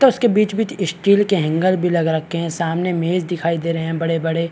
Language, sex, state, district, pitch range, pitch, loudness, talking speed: Hindi, male, Chhattisgarh, Rajnandgaon, 165-190 Hz, 170 Hz, -18 LUFS, 265 wpm